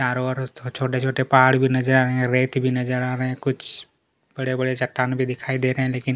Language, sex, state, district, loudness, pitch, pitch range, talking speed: Hindi, male, Chhattisgarh, Kabirdham, -22 LUFS, 130 Hz, 125-130 Hz, 235 wpm